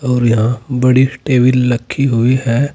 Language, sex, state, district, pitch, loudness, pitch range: Hindi, male, Uttar Pradesh, Saharanpur, 125 Hz, -13 LUFS, 120-130 Hz